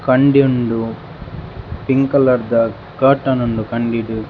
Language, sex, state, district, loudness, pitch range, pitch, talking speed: Tulu, male, Karnataka, Dakshina Kannada, -16 LUFS, 115-135 Hz, 125 Hz, 100 wpm